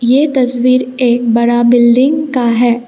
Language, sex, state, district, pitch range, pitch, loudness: Hindi, female, Assam, Kamrup Metropolitan, 240-255 Hz, 245 Hz, -11 LUFS